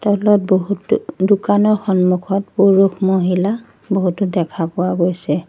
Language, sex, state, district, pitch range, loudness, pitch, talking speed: Assamese, female, Assam, Sonitpur, 180-200 Hz, -16 LUFS, 190 Hz, 110 wpm